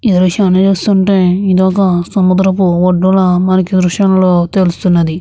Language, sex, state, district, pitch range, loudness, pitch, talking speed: Telugu, female, Andhra Pradesh, Visakhapatnam, 180-190 Hz, -11 LUFS, 185 Hz, 125 wpm